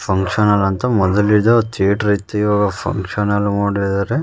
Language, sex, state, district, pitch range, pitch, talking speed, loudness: Kannada, male, Karnataka, Raichur, 100-105 Hz, 105 Hz, 140 wpm, -16 LUFS